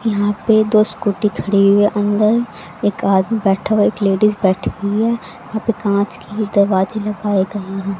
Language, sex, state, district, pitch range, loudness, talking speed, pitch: Hindi, female, Haryana, Rohtak, 195-215 Hz, -16 LUFS, 195 wpm, 205 Hz